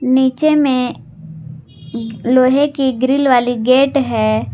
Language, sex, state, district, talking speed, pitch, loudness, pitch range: Hindi, female, Jharkhand, Garhwa, 105 wpm, 255 Hz, -14 LUFS, 160-265 Hz